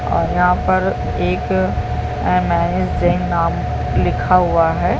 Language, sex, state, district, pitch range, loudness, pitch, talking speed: Hindi, female, Chhattisgarh, Balrampur, 85-95 Hz, -17 LUFS, 90 Hz, 120 wpm